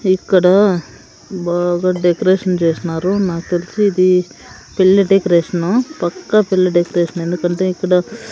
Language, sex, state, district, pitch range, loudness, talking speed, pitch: Telugu, female, Andhra Pradesh, Sri Satya Sai, 175-190 Hz, -15 LUFS, 100 wpm, 180 Hz